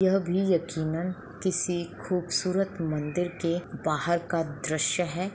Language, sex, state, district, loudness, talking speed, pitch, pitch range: Hindi, female, Bihar, Begusarai, -28 LUFS, 125 wpm, 175 Hz, 165-185 Hz